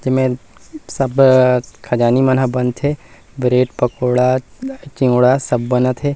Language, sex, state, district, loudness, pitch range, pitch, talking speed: Chhattisgarhi, male, Chhattisgarh, Rajnandgaon, -15 LUFS, 125-135 Hz, 130 Hz, 125 wpm